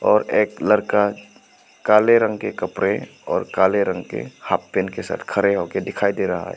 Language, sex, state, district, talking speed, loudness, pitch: Hindi, male, Arunachal Pradesh, Papum Pare, 190 wpm, -20 LUFS, 105 Hz